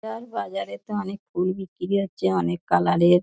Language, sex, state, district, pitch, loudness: Bengali, female, West Bengal, Dakshin Dinajpur, 175 Hz, -25 LUFS